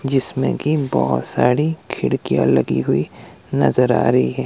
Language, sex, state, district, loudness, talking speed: Hindi, male, Himachal Pradesh, Shimla, -18 LUFS, 150 wpm